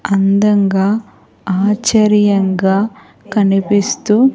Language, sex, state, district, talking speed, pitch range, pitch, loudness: Telugu, female, Andhra Pradesh, Sri Satya Sai, 40 wpm, 195-210 Hz, 205 Hz, -14 LUFS